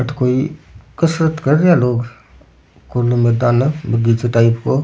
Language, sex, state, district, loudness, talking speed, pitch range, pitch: Rajasthani, male, Rajasthan, Churu, -15 LUFS, 175 wpm, 115-140 Hz, 120 Hz